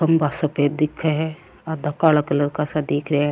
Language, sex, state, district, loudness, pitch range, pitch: Rajasthani, female, Rajasthan, Churu, -21 LUFS, 145-160 Hz, 150 Hz